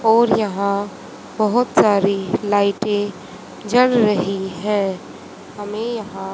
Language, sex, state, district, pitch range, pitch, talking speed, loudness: Hindi, female, Haryana, Jhajjar, 200-220 Hz, 205 Hz, 95 wpm, -19 LUFS